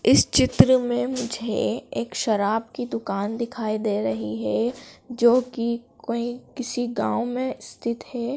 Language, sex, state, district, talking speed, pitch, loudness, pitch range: Hindi, female, Madhya Pradesh, Dhar, 145 wpm, 235 Hz, -24 LUFS, 220-245 Hz